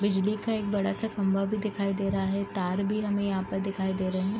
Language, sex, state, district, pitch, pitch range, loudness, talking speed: Hindi, female, Bihar, East Champaran, 195 Hz, 195-205 Hz, -29 LUFS, 275 wpm